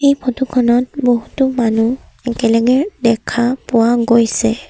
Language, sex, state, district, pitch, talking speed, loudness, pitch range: Assamese, female, Assam, Sonitpur, 240 Hz, 115 wpm, -15 LUFS, 230-260 Hz